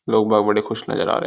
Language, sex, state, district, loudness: Hindi, male, Uttar Pradesh, Gorakhpur, -19 LUFS